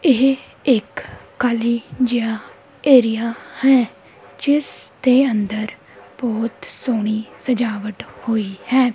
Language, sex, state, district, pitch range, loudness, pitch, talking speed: Punjabi, female, Punjab, Kapurthala, 220-260 Hz, -19 LUFS, 240 Hz, 95 wpm